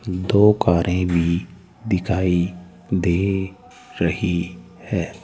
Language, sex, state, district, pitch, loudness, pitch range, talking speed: Hindi, male, Rajasthan, Jaipur, 90 Hz, -20 LUFS, 85-95 Hz, 80 wpm